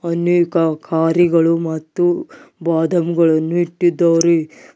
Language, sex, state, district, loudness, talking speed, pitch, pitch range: Kannada, male, Karnataka, Bidar, -16 LUFS, 65 wpm, 170 Hz, 165-175 Hz